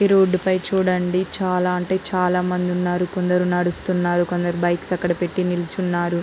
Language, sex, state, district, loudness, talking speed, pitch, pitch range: Telugu, female, Andhra Pradesh, Guntur, -21 LUFS, 155 wpm, 180 Hz, 175-185 Hz